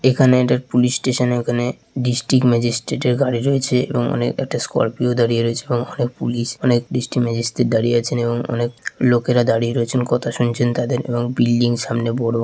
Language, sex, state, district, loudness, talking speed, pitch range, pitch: Bengali, male, West Bengal, Dakshin Dinajpur, -19 LUFS, 175 wpm, 120-125 Hz, 120 Hz